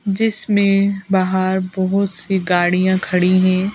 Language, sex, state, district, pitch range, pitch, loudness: Hindi, female, Madhya Pradesh, Bhopal, 185-195 Hz, 190 Hz, -17 LUFS